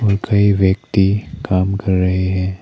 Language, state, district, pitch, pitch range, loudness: Hindi, Arunachal Pradesh, Papum Pare, 95 Hz, 95-100 Hz, -16 LUFS